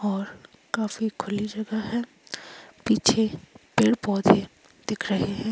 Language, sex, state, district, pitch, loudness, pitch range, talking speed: Hindi, female, Himachal Pradesh, Shimla, 215 Hz, -25 LUFS, 205-220 Hz, 120 wpm